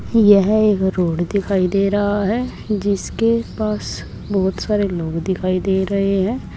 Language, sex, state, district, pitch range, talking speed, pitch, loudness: Hindi, female, Uttar Pradesh, Saharanpur, 190-210 Hz, 145 wpm, 200 Hz, -18 LUFS